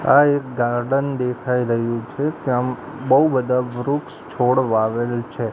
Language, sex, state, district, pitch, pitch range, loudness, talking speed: Gujarati, male, Gujarat, Gandhinagar, 125 Hz, 120-135 Hz, -20 LUFS, 140 wpm